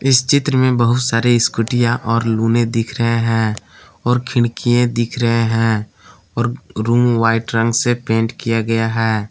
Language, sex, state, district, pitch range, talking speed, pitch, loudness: Hindi, male, Jharkhand, Palamu, 115-120 Hz, 160 wpm, 115 Hz, -16 LUFS